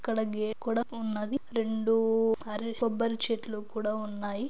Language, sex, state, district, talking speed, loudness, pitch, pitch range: Telugu, female, Andhra Pradesh, Anantapur, 135 wpm, -31 LUFS, 225 Hz, 215-230 Hz